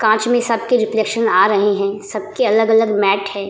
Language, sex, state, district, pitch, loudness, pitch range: Hindi, female, Bihar, Vaishali, 215 Hz, -16 LUFS, 200-225 Hz